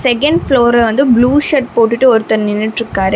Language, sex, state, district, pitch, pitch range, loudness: Tamil, female, Tamil Nadu, Namakkal, 240 Hz, 225-265 Hz, -11 LUFS